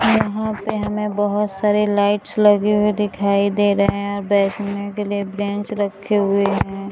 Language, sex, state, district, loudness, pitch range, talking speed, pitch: Hindi, female, Bihar, Gaya, -19 LUFS, 200-210 Hz, 175 wpm, 205 Hz